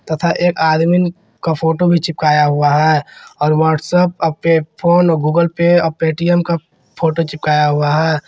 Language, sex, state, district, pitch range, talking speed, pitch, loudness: Hindi, male, Jharkhand, Garhwa, 155-170 Hz, 160 wpm, 160 Hz, -14 LUFS